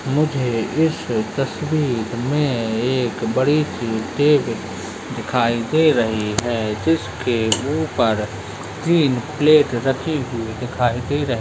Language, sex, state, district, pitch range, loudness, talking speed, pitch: Hindi, male, Uttarakhand, Tehri Garhwal, 115-150 Hz, -20 LUFS, 115 wpm, 125 Hz